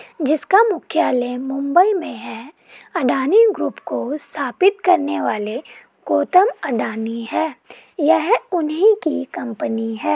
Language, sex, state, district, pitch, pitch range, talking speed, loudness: Hindi, female, Jharkhand, Sahebganj, 305 Hz, 250-370 Hz, 110 wpm, -18 LUFS